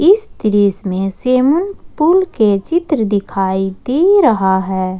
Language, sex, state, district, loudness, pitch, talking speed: Hindi, female, Jharkhand, Ranchi, -14 LUFS, 215 Hz, 130 wpm